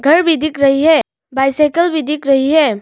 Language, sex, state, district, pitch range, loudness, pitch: Hindi, female, Arunachal Pradesh, Longding, 275-315 Hz, -13 LUFS, 300 Hz